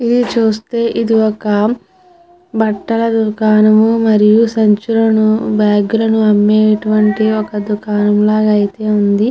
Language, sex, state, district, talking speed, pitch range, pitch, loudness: Telugu, female, Andhra Pradesh, Chittoor, 105 wpm, 210-225 Hz, 215 Hz, -12 LUFS